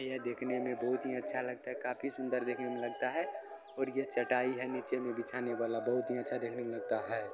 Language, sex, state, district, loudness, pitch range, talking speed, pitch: Hindi, male, Bihar, Saran, -36 LUFS, 120-130 Hz, 235 wpm, 125 Hz